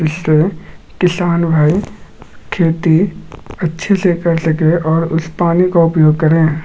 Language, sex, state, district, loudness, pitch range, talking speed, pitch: Magahi, male, Bihar, Gaya, -14 LUFS, 160-175 Hz, 125 wpm, 165 Hz